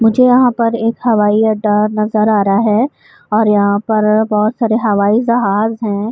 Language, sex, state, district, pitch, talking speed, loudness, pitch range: Urdu, female, Uttar Pradesh, Budaun, 215 Hz, 175 wpm, -13 LUFS, 210-230 Hz